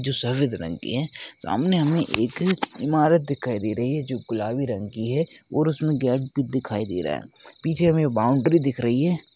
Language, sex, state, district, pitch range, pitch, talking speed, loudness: Hindi, male, Rajasthan, Churu, 120-155 Hz, 135 Hz, 190 wpm, -24 LUFS